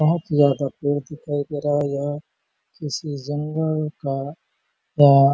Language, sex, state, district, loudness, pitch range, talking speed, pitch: Hindi, male, Chhattisgarh, Bastar, -22 LUFS, 140-150 Hz, 135 wpm, 145 Hz